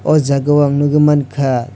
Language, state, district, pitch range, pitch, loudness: Kokborok, Tripura, West Tripura, 140-145 Hz, 145 Hz, -13 LUFS